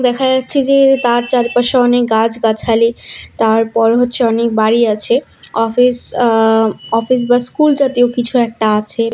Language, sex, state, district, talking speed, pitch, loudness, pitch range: Bengali, female, West Bengal, Alipurduar, 145 wpm, 240 Hz, -13 LUFS, 225-250 Hz